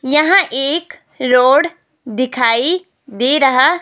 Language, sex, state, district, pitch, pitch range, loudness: Hindi, female, Himachal Pradesh, Shimla, 270 Hz, 255-340 Hz, -13 LUFS